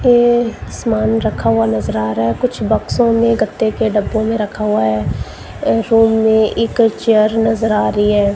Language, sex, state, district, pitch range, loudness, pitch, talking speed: Hindi, female, Punjab, Kapurthala, 205-225 Hz, -15 LUFS, 220 Hz, 195 wpm